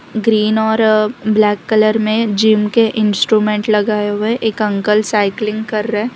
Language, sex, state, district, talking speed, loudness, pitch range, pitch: Hindi, female, Gujarat, Valsad, 155 wpm, -14 LUFS, 210-220 Hz, 215 Hz